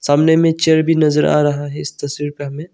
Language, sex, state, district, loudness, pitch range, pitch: Hindi, male, Arunachal Pradesh, Longding, -15 LUFS, 145-160 Hz, 150 Hz